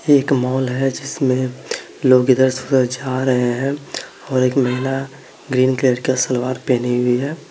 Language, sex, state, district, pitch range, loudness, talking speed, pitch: Hindi, male, Bihar, Gaya, 125-135 Hz, -18 LUFS, 175 wpm, 130 Hz